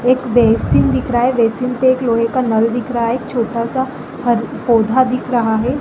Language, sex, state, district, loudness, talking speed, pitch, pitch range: Hindi, female, Chhattisgarh, Balrampur, -15 LUFS, 225 wpm, 240 Hz, 230-255 Hz